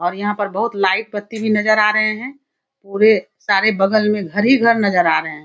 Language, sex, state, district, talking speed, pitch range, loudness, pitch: Hindi, female, Bihar, Kishanganj, 230 wpm, 200-220 Hz, -16 LUFS, 210 Hz